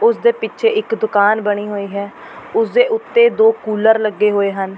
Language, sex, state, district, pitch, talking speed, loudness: Punjabi, female, Delhi, New Delhi, 220 Hz, 200 wpm, -15 LUFS